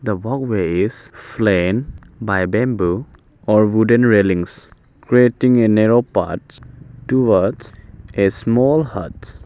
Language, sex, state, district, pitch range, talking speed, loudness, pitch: English, male, Arunachal Pradesh, Papum Pare, 100-125 Hz, 110 wpm, -16 LUFS, 110 Hz